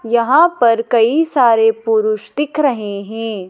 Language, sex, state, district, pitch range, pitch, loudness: Hindi, female, Madhya Pradesh, Dhar, 220-260 Hz, 230 Hz, -14 LUFS